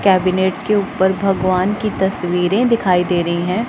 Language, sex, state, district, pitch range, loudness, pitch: Hindi, female, Punjab, Pathankot, 180-200 Hz, -17 LUFS, 190 Hz